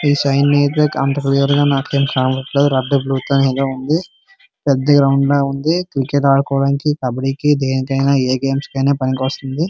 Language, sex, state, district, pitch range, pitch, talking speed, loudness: Telugu, male, Andhra Pradesh, Srikakulam, 135-145 Hz, 140 Hz, 150 wpm, -16 LUFS